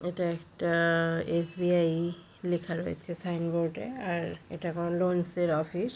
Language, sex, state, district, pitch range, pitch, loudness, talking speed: Bengali, female, West Bengal, Paschim Medinipur, 170-175 Hz, 170 Hz, -30 LUFS, 130 wpm